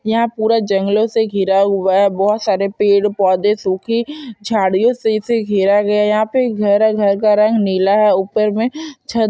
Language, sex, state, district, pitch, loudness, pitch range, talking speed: Hindi, female, Chhattisgarh, Bilaspur, 210 Hz, -15 LUFS, 200-225 Hz, 200 wpm